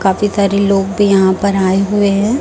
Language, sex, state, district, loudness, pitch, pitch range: Hindi, female, Chhattisgarh, Raipur, -13 LUFS, 200 Hz, 195-205 Hz